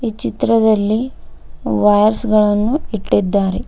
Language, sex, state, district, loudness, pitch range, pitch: Kannada, female, Karnataka, Bidar, -15 LUFS, 205-225 Hz, 215 Hz